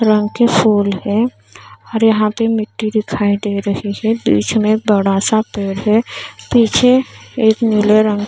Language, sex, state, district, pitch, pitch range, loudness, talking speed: Hindi, female, Maharashtra, Mumbai Suburban, 215 Hz, 205-225 Hz, -15 LUFS, 160 wpm